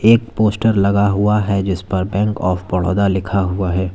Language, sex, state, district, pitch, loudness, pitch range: Hindi, male, Uttar Pradesh, Lalitpur, 100 Hz, -17 LUFS, 95-105 Hz